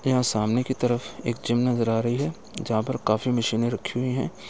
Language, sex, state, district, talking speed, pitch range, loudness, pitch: Hindi, male, Uttar Pradesh, Etah, 225 wpm, 115-130 Hz, -25 LUFS, 120 Hz